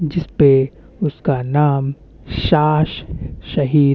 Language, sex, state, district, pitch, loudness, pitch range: Hindi, male, Chhattisgarh, Bastar, 145 Hz, -17 LUFS, 140-155 Hz